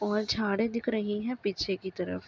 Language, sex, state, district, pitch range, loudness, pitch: Hindi, female, Uttar Pradesh, Ghazipur, 190-220 Hz, -31 LUFS, 210 Hz